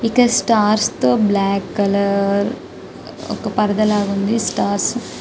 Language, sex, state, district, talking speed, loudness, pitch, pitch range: Telugu, female, Telangana, Karimnagar, 115 wpm, -17 LUFS, 205 Hz, 200-215 Hz